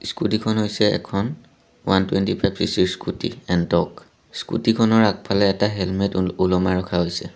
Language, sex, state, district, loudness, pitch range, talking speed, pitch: Assamese, male, Assam, Sonitpur, -21 LUFS, 95-110 Hz, 155 wpm, 100 Hz